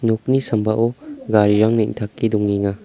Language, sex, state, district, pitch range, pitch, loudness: Garo, male, Meghalaya, South Garo Hills, 105-115 Hz, 110 Hz, -18 LUFS